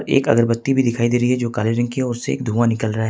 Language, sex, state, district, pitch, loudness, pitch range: Hindi, male, Jharkhand, Ranchi, 120 Hz, -19 LUFS, 115-125 Hz